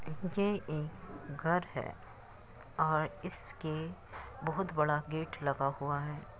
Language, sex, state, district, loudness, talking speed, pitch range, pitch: Hindi, female, Uttar Pradesh, Muzaffarnagar, -36 LUFS, 110 wpm, 130-160 Hz, 150 Hz